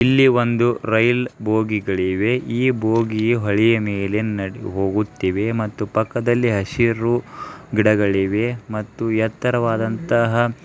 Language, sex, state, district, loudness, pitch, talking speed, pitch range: Kannada, male, Karnataka, Dharwad, -19 LUFS, 110 Hz, 85 wpm, 105-120 Hz